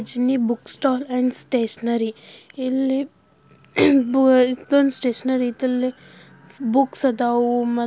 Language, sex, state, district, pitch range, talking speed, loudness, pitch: Kannada, female, Karnataka, Belgaum, 240-265 Hz, 60 wpm, -20 LUFS, 250 Hz